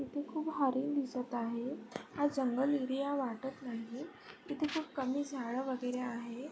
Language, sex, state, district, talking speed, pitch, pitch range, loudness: Marathi, female, Maharashtra, Sindhudurg, 145 wpm, 265 Hz, 250-285 Hz, -37 LUFS